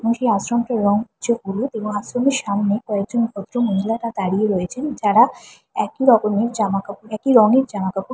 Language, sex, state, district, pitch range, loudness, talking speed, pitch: Bengali, female, West Bengal, Paschim Medinipur, 200-235 Hz, -19 LUFS, 160 wpm, 215 Hz